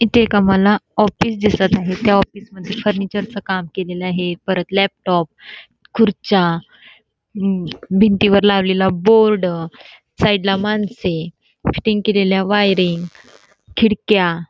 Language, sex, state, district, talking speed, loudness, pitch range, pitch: Marathi, female, Karnataka, Belgaum, 100 wpm, -16 LUFS, 185-210 Hz, 195 Hz